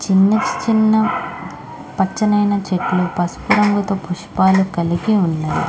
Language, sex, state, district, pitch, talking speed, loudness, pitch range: Telugu, female, Andhra Pradesh, Krishna, 195 Hz, 95 wpm, -17 LUFS, 185-215 Hz